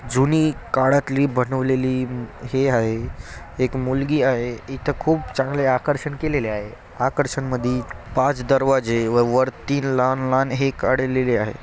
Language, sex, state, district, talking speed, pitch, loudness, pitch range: Marathi, male, Maharashtra, Chandrapur, 130 wpm, 130 Hz, -21 LUFS, 125-135 Hz